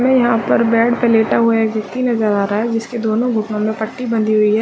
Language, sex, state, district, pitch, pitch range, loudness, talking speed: Hindi, female, Jharkhand, Sahebganj, 225 Hz, 215-235 Hz, -16 LUFS, 260 wpm